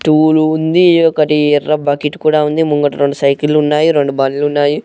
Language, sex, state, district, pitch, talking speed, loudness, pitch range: Telugu, male, Telangana, Karimnagar, 150 Hz, 160 wpm, -12 LUFS, 145-155 Hz